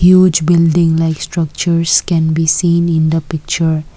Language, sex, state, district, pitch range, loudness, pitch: English, female, Assam, Kamrup Metropolitan, 160-170 Hz, -13 LUFS, 165 Hz